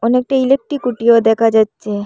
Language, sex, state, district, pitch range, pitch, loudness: Bengali, female, Assam, Hailakandi, 225-260 Hz, 235 Hz, -14 LUFS